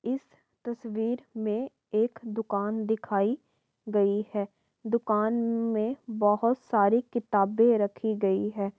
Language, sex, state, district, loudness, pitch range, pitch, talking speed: Hindi, female, Uttar Pradesh, Varanasi, -28 LUFS, 205-235 Hz, 220 Hz, 110 wpm